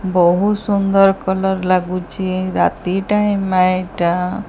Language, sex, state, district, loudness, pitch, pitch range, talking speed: Odia, female, Odisha, Sambalpur, -16 LUFS, 185 Hz, 185-195 Hz, 95 wpm